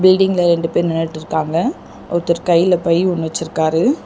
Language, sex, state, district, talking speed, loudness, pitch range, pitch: Tamil, female, Tamil Nadu, Chennai, 135 wpm, -16 LUFS, 165-180 Hz, 170 Hz